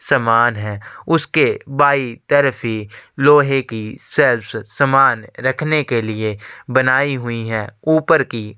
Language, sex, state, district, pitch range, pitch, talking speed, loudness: Hindi, male, Chhattisgarh, Sukma, 110-140 Hz, 130 Hz, 110 wpm, -16 LUFS